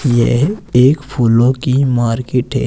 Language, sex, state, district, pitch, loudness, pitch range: Hindi, male, Uttar Pradesh, Saharanpur, 125 Hz, -14 LUFS, 120-135 Hz